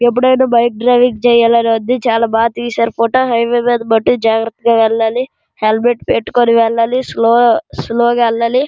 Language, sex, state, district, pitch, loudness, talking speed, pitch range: Telugu, female, Andhra Pradesh, Srikakulam, 235 Hz, -12 LUFS, 160 wpm, 230-245 Hz